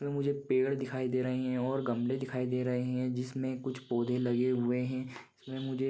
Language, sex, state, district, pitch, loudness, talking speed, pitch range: Hindi, male, Maharashtra, Pune, 130 Hz, -33 LUFS, 195 wpm, 125-130 Hz